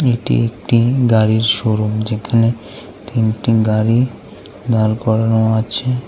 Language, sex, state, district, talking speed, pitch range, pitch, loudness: Bengali, male, Tripura, West Tripura, 100 wpm, 110-120 Hz, 115 Hz, -15 LUFS